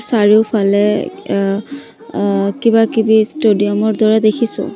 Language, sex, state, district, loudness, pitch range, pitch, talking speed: Assamese, female, Assam, Sonitpur, -14 LUFS, 205-225 Hz, 215 Hz, 115 wpm